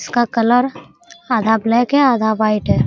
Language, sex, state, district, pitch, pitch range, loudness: Hindi, female, Bihar, Araria, 240 Hz, 225-260 Hz, -16 LUFS